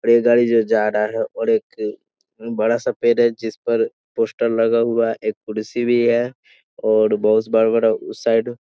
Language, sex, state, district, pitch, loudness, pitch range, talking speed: Hindi, male, Bihar, Sitamarhi, 115 Hz, -19 LUFS, 110-120 Hz, 195 wpm